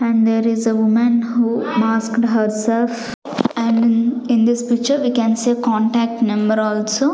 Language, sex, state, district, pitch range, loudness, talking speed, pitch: English, female, Chandigarh, Chandigarh, 225-240 Hz, -17 LUFS, 150 wpm, 230 Hz